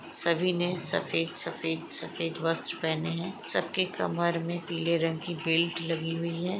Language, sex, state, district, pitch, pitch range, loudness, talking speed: Hindi, female, Chhattisgarh, Raigarh, 170 Hz, 165-175 Hz, -30 LUFS, 175 wpm